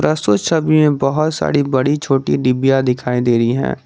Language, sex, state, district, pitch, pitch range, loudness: Hindi, male, Jharkhand, Garhwa, 135 Hz, 125-145 Hz, -15 LUFS